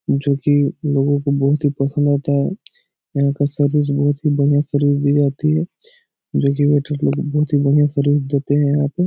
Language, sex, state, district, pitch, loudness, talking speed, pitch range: Hindi, male, Bihar, Jahanabad, 145 Hz, -17 LUFS, 205 wpm, 140-150 Hz